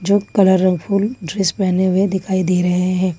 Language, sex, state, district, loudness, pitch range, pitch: Hindi, female, Jharkhand, Ranchi, -17 LUFS, 185-195 Hz, 185 Hz